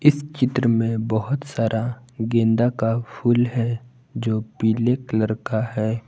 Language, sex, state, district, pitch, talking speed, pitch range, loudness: Hindi, male, Jharkhand, Palamu, 115 Hz, 140 wpm, 110-125 Hz, -22 LUFS